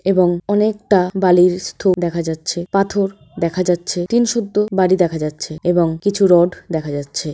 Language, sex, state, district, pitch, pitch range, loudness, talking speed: Bengali, female, West Bengal, Paschim Medinipur, 180 Hz, 170-195 Hz, -17 LUFS, 165 wpm